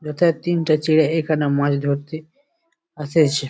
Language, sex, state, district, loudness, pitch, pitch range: Bengali, male, West Bengal, Jalpaiguri, -19 LUFS, 155 Hz, 145-170 Hz